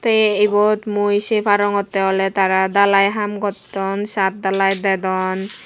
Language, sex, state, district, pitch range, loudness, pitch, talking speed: Chakma, female, Tripura, West Tripura, 195-205 Hz, -17 LUFS, 200 Hz, 140 wpm